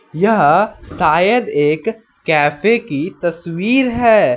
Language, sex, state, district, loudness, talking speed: Hindi, male, West Bengal, Alipurduar, -15 LUFS, 95 wpm